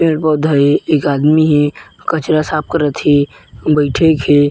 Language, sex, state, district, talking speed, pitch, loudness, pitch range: Chhattisgarhi, male, Chhattisgarh, Bilaspur, 160 wpm, 150 Hz, -13 LUFS, 145-155 Hz